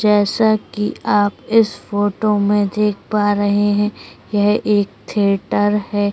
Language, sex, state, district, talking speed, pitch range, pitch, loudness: Hindi, female, Uttar Pradesh, Etah, 135 wpm, 205-210 Hz, 205 Hz, -17 LUFS